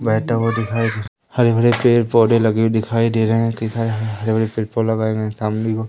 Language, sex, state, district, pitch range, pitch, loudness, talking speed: Hindi, male, Madhya Pradesh, Umaria, 110-115 Hz, 110 Hz, -18 LUFS, 235 wpm